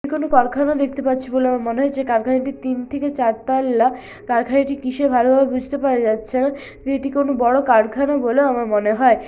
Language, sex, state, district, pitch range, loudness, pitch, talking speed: Bengali, female, West Bengal, Malda, 245-275 Hz, -18 LUFS, 260 Hz, 170 wpm